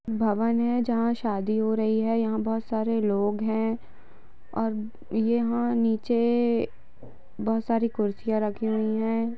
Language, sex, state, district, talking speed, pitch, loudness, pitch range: Hindi, female, Jharkhand, Jamtara, 140 wpm, 225 Hz, -26 LUFS, 220-230 Hz